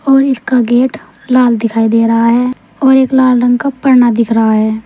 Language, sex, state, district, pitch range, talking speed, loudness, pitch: Hindi, female, Uttar Pradesh, Saharanpur, 230-260 Hz, 210 wpm, -10 LUFS, 245 Hz